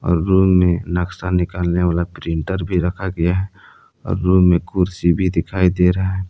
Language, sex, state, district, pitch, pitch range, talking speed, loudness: Hindi, male, Jharkhand, Palamu, 90 Hz, 85-95 Hz, 180 wpm, -18 LUFS